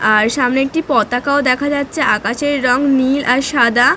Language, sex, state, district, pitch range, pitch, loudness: Bengali, female, West Bengal, Dakshin Dinajpur, 245-285 Hz, 265 Hz, -14 LUFS